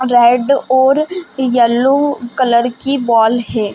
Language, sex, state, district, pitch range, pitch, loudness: Hindi, female, Chhattisgarh, Raigarh, 240-275 Hz, 255 Hz, -13 LUFS